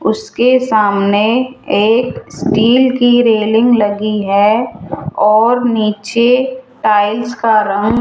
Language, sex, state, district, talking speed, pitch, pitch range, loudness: Hindi, female, Rajasthan, Jaipur, 105 wpm, 225 Hz, 210-245 Hz, -12 LUFS